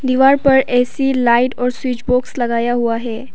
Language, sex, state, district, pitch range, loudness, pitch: Hindi, female, Arunachal Pradesh, Papum Pare, 240-260 Hz, -15 LUFS, 250 Hz